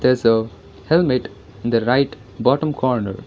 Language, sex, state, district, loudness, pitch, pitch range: English, female, Karnataka, Bangalore, -19 LUFS, 120 Hz, 100-130 Hz